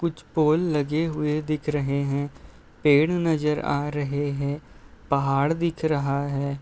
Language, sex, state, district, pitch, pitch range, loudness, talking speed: Hindi, male, Uttar Pradesh, Deoria, 150 Hz, 140-155 Hz, -24 LUFS, 145 wpm